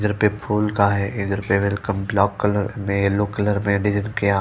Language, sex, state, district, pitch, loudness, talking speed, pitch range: Hindi, female, Punjab, Fazilka, 100 Hz, -21 LUFS, 175 wpm, 100-105 Hz